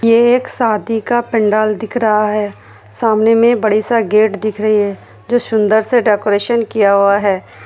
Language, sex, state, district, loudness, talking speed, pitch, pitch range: Hindi, female, Bihar, Kishanganj, -14 LUFS, 180 wpm, 215 Hz, 210-230 Hz